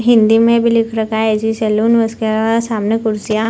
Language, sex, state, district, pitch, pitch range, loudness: Hindi, female, Bihar, Purnia, 220 Hz, 220-230 Hz, -14 LUFS